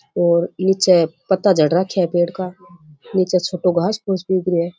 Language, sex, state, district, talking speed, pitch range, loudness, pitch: Rajasthani, female, Rajasthan, Churu, 190 wpm, 170-190 Hz, -18 LUFS, 180 Hz